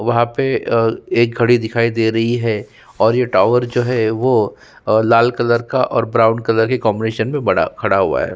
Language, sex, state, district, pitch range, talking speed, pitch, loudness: Hindi, male, Uttarakhand, Tehri Garhwal, 110-120 Hz, 200 wpm, 115 Hz, -16 LUFS